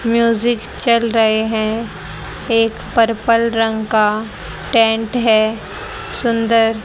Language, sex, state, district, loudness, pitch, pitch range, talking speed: Hindi, female, Haryana, Jhajjar, -16 LUFS, 225 Hz, 220-230 Hz, 95 wpm